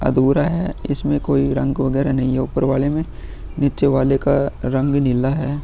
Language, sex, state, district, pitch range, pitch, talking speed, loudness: Hindi, female, Bihar, Vaishali, 135-145 Hz, 140 Hz, 180 wpm, -19 LUFS